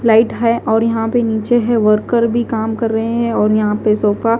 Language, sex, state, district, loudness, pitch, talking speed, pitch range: Hindi, female, Punjab, Fazilka, -15 LUFS, 225 Hz, 245 wpm, 220-235 Hz